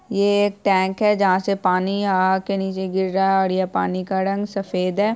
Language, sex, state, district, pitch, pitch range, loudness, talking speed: Hindi, female, Bihar, Purnia, 195 Hz, 190-200 Hz, -20 LUFS, 220 wpm